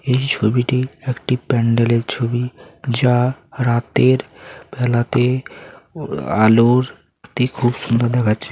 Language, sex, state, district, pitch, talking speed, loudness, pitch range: Bengali, male, West Bengal, Paschim Medinipur, 125 Hz, 90 wpm, -18 LUFS, 120-130 Hz